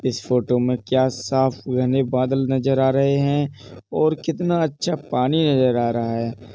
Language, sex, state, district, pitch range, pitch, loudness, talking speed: Hindi, male, Uttar Pradesh, Jalaun, 125-140 Hz, 130 Hz, -20 LUFS, 175 wpm